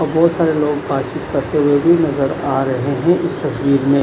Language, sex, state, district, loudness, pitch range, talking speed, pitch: Hindi, male, Punjab, Kapurthala, -16 LUFS, 140-160 Hz, 225 wpm, 145 Hz